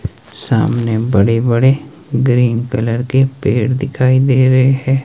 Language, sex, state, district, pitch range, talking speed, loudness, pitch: Hindi, male, Himachal Pradesh, Shimla, 115-135 Hz, 120 wpm, -14 LUFS, 130 Hz